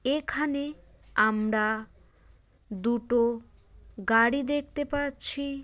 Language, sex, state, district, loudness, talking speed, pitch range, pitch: Bengali, female, West Bengal, Jalpaiguri, -26 LUFS, 65 wpm, 220-285 Hz, 250 Hz